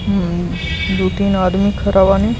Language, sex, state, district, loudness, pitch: Hindi, male, Bihar, East Champaran, -16 LUFS, 100 Hz